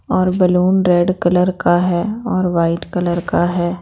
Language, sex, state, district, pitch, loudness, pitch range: Hindi, female, Bihar, Patna, 180 Hz, -16 LUFS, 175-185 Hz